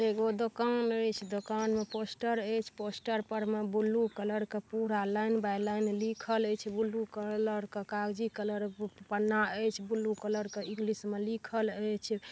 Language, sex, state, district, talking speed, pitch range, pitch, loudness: Maithili, female, Bihar, Darbhanga, 195 wpm, 210-220 Hz, 215 Hz, -34 LUFS